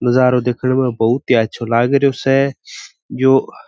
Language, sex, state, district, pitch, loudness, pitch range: Marwari, male, Rajasthan, Churu, 125 Hz, -15 LUFS, 120-135 Hz